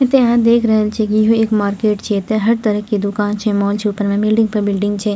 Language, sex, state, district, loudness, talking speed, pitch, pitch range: Maithili, female, Bihar, Purnia, -15 LUFS, 280 wpm, 210 Hz, 205-220 Hz